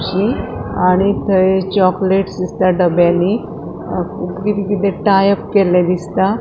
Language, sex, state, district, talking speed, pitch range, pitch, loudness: Konkani, female, Goa, North and South Goa, 95 wpm, 180-200 Hz, 190 Hz, -15 LUFS